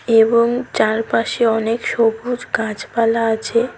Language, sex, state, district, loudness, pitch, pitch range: Bengali, female, West Bengal, Cooch Behar, -17 LUFS, 230 Hz, 225-235 Hz